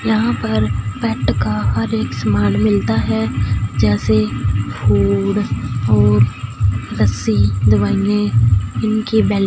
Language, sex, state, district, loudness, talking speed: Hindi, female, Punjab, Fazilka, -16 LUFS, 90 wpm